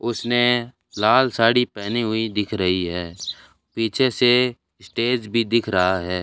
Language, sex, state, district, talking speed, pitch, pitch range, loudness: Hindi, male, Rajasthan, Bikaner, 145 wpm, 115 Hz, 90-120 Hz, -20 LUFS